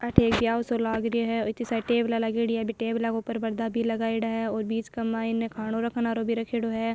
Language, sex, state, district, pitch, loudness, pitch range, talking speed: Marwari, female, Rajasthan, Nagaur, 230 Hz, -27 LUFS, 225-230 Hz, 265 wpm